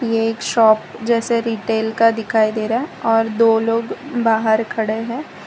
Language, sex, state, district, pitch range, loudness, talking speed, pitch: Hindi, female, Gujarat, Valsad, 220-230 Hz, -18 LUFS, 165 wpm, 225 Hz